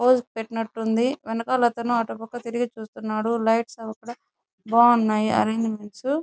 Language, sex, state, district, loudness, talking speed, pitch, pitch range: Telugu, female, Andhra Pradesh, Chittoor, -23 LUFS, 125 wpm, 230 Hz, 225-240 Hz